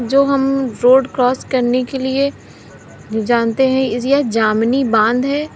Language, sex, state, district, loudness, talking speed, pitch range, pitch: Hindi, female, Uttar Pradesh, Lalitpur, -15 LUFS, 140 wpm, 235-270 Hz, 260 Hz